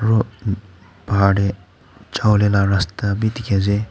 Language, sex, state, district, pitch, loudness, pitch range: Nagamese, male, Nagaland, Kohima, 100 Hz, -19 LUFS, 100-105 Hz